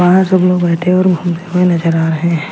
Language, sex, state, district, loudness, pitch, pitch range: Hindi, female, Chhattisgarh, Raipur, -13 LUFS, 175 Hz, 170-180 Hz